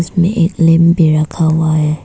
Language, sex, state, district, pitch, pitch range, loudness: Hindi, female, Arunachal Pradesh, Papum Pare, 165 Hz, 155-170 Hz, -12 LUFS